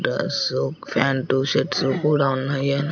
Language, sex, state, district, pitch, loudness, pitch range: Telugu, male, Andhra Pradesh, Sri Satya Sai, 135 Hz, -22 LUFS, 135-140 Hz